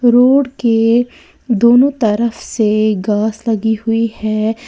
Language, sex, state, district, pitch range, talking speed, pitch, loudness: Hindi, female, Uttar Pradesh, Lalitpur, 215-240 Hz, 115 wpm, 225 Hz, -14 LUFS